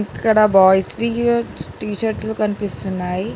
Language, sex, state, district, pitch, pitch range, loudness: Telugu, female, Telangana, Hyderabad, 210 Hz, 190-225 Hz, -18 LUFS